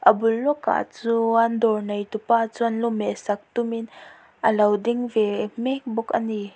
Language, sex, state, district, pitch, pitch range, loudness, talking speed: Mizo, female, Mizoram, Aizawl, 230 Hz, 215-235 Hz, -23 LUFS, 155 wpm